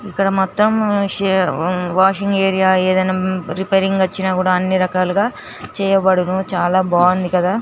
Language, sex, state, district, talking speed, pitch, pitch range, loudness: Telugu, female, Andhra Pradesh, Srikakulam, 125 wpm, 190 Hz, 185-195 Hz, -16 LUFS